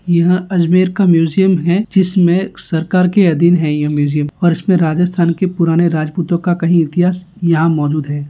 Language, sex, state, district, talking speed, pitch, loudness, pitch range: Hindi, male, Rajasthan, Nagaur, 175 wpm, 175 Hz, -14 LUFS, 165-180 Hz